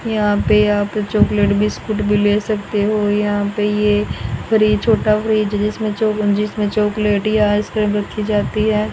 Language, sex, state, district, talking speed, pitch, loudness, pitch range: Hindi, female, Haryana, Rohtak, 140 wpm, 210 Hz, -17 LUFS, 205-215 Hz